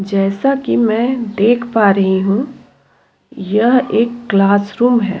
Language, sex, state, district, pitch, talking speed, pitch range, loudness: Hindi, female, Uttar Pradesh, Jyotiba Phule Nagar, 220 Hz, 125 wpm, 200-240 Hz, -14 LUFS